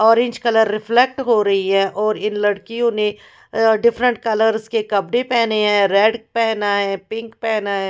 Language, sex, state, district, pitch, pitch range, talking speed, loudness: Hindi, female, Odisha, Khordha, 220 Hz, 205-230 Hz, 165 wpm, -18 LUFS